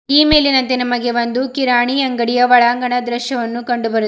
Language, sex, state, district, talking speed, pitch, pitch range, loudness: Kannada, female, Karnataka, Bidar, 145 wpm, 245 Hz, 240-260 Hz, -15 LUFS